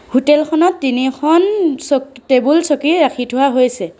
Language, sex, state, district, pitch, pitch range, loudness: Assamese, female, Assam, Sonitpur, 275 Hz, 255-315 Hz, -14 LUFS